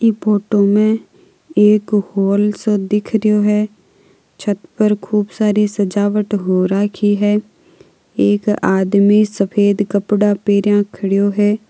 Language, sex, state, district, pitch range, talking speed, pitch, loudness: Marwari, female, Rajasthan, Nagaur, 200-210 Hz, 120 wpm, 205 Hz, -15 LUFS